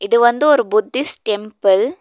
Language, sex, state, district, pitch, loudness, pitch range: Tamil, female, Tamil Nadu, Nilgiris, 255 Hz, -15 LUFS, 215-320 Hz